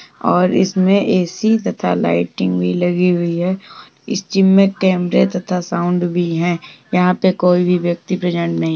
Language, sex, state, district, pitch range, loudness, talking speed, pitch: Hindi, female, Uttar Pradesh, Jalaun, 170-185 Hz, -16 LUFS, 170 wpm, 180 Hz